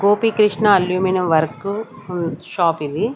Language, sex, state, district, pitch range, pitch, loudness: Telugu, female, Andhra Pradesh, Sri Satya Sai, 170-210 Hz, 185 Hz, -18 LUFS